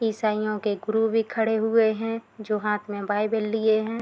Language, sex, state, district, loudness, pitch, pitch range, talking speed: Hindi, female, Bihar, Madhepura, -25 LUFS, 220 Hz, 210-225 Hz, 195 wpm